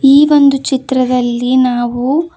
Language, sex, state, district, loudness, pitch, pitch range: Kannada, female, Karnataka, Koppal, -12 LUFS, 260 Hz, 250-280 Hz